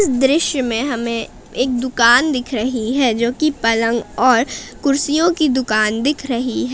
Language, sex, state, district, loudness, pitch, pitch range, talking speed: Hindi, female, Jharkhand, Palamu, -17 LUFS, 255 Hz, 235-280 Hz, 150 wpm